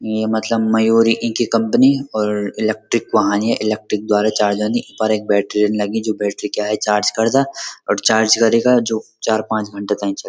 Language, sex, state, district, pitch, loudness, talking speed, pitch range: Garhwali, male, Uttarakhand, Uttarkashi, 110 Hz, -17 LUFS, 185 wpm, 105-115 Hz